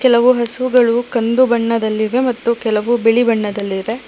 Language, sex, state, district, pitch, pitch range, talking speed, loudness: Kannada, female, Karnataka, Bangalore, 235 Hz, 225-245 Hz, 115 wpm, -15 LUFS